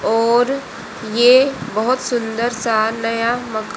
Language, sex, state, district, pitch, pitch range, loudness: Hindi, female, Haryana, Rohtak, 230 Hz, 225-245 Hz, -17 LUFS